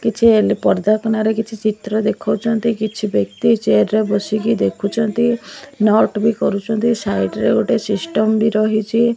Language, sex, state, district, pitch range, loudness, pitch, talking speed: Odia, female, Odisha, Malkangiri, 215-225 Hz, -17 LUFS, 220 Hz, 150 wpm